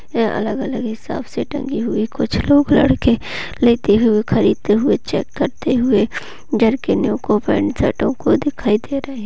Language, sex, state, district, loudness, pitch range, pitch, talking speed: Hindi, female, Maharashtra, Sindhudurg, -17 LUFS, 215-275 Hz, 235 Hz, 175 wpm